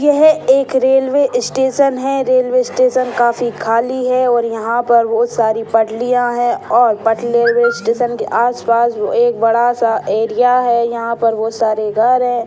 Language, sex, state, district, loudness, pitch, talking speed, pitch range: Hindi, female, Bihar, Sitamarhi, -14 LUFS, 240 Hz, 175 wpm, 230-255 Hz